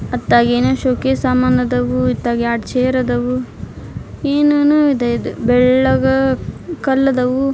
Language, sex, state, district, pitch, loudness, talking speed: Kannada, female, Karnataka, Dharwad, 240 Hz, -15 LUFS, 135 wpm